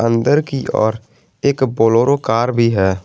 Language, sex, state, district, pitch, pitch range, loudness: Hindi, male, Jharkhand, Garhwa, 115 Hz, 115-135 Hz, -16 LUFS